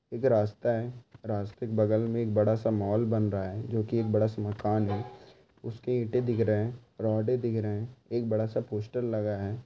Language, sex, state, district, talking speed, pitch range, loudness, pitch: Hindi, male, Bihar, Bhagalpur, 225 wpm, 105-120 Hz, -30 LUFS, 110 Hz